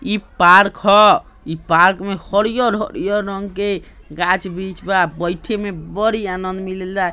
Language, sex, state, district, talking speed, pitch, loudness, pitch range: Hindi, male, Bihar, East Champaran, 135 wpm, 195 Hz, -16 LUFS, 180-205 Hz